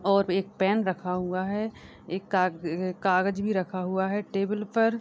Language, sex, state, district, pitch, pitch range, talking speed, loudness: Hindi, female, Chhattisgarh, Bilaspur, 190 Hz, 185-200 Hz, 190 wpm, -28 LUFS